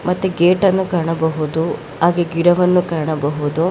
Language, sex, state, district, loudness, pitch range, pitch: Kannada, female, Karnataka, Bangalore, -17 LUFS, 160-180 Hz, 170 Hz